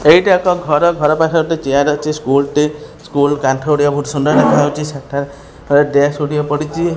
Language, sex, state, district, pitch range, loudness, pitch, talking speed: Odia, male, Odisha, Khordha, 145-155 Hz, -14 LUFS, 150 Hz, 155 wpm